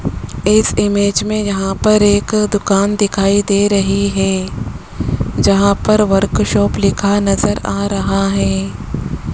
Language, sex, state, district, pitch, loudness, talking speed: Hindi, male, Rajasthan, Jaipur, 195 Hz, -14 LUFS, 120 wpm